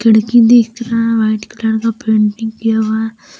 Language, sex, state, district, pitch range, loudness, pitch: Hindi, female, Jharkhand, Deoghar, 220-230 Hz, -13 LUFS, 225 Hz